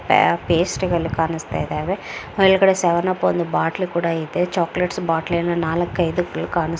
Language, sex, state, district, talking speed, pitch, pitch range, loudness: Kannada, female, Karnataka, Mysore, 165 wpm, 170 Hz, 165-180 Hz, -20 LUFS